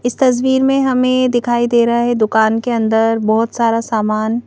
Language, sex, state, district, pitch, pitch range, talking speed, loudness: Hindi, female, Madhya Pradesh, Bhopal, 235 Hz, 225-245 Hz, 190 wpm, -14 LUFS